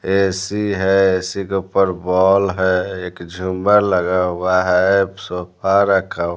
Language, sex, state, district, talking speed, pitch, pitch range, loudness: Hindi, male, Bihar, Patna, 130 wpm, 95 Hz, 90-95 Hz, -17 LUFS